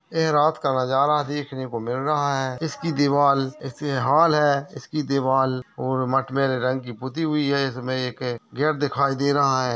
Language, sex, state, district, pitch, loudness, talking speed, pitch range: Hindi, male, Uttar Pradesh, Hamirpur, 140 Hz, -23 LUFS, 185 wpm, 130-145 Hz